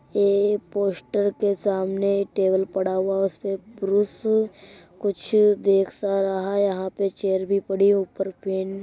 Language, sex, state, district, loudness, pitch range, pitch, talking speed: Hindi, female, Uttar Pradesh, Jyotiba Phule Nagar, -23 LUFS, 195-200 Hz, 195 Hz, 165 wpm